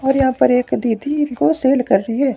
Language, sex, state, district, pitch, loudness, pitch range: Hindi, male, Himachal Pradesh, Shimla, 260 Hz, -16 LUFS, 215-275 Hz